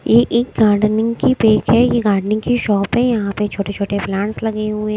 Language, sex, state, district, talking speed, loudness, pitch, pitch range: Hindi, female, Maharashtra, Mumbai Suburban, 205 wpm, -16 LUFS, 215 Hz, 205-235 Hz